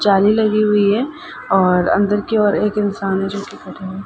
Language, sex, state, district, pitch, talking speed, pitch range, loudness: Hindi, female, Uttar Pradesh, Ghazipur, 205 Hz, 220 wpm, 195-215 Hz, -16 LUFS